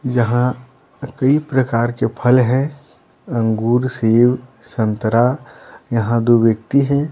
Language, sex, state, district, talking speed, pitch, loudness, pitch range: Hindi, male, Bihar, Patna, 110 wpm, 125 Hz, -17 LUFS, 115-130 Hz